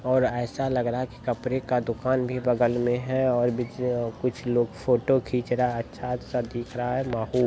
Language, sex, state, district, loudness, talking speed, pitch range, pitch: Maithili, male, Bihar, Supaul, -26 LUFS, 210 wpm, 120-125 Hz, 125 Hz